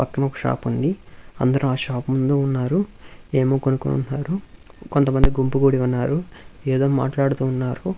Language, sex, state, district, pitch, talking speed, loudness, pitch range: Telugu, male, Andhra Pradesh, Visakhapatnam, 135 Hz, 130 wpm, -21 LUFS, 130-140 Hz